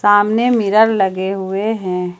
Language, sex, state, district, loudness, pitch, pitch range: Hindi, female, Jharkhand, Ranchi, -15 LUFS, 205 Hz, 190-220 Hz